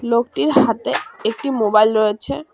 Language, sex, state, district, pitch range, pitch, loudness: Bengali, female, West Bengal, Cooch Behar, 215-270 Hz, 230 Hz, -17 LUFS